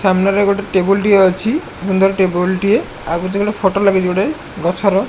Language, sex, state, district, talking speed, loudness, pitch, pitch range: Odia, male, Odisha, Malkangiri, 175 wpm, -15 LUFS, 195 Hz, 185-200 Hz